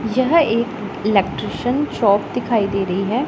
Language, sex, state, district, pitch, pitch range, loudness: Hindi, female, Punjab, Pathankot, 225 Hz, 200-255 Hz, -19 LUFS